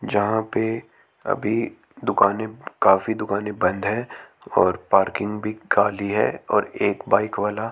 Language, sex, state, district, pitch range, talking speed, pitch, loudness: Hindi, male, Chandigarh, Chandigarh, 100-110 Hz, 130 wpm, 105 Hz, -22 LUFS